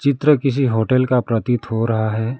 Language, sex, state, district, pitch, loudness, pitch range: Hindi, male, West Bengal, Alipurduar, 125 Hz, -18 LUFS, 115-135 Hz